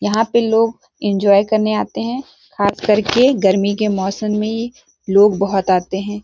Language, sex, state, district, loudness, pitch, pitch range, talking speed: Hindi, female, Chhattisgarh, Sarguja, -16 LUFS, 210 Hz, 200-225 Hz, 165 wpm